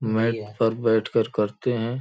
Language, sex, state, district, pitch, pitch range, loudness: Hindi, male, Uttar Pradesh, Gorakhpur, 115 Hz, 110-115 Hz, -24 LUFS